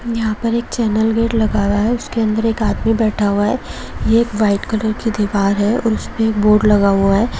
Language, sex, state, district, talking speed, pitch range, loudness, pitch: Hindi, female, Jharkhand, Jamtara, 235 wpm, 210-225 Hz, -16 LUFS, 220 Hz